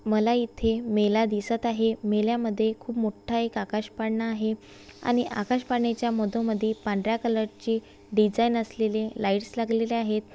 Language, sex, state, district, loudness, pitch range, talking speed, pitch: Marathi, female, Maharashtra, Chandrapur, -27 LUFS, 215-230 Hz, 145 wpm, 225 Hz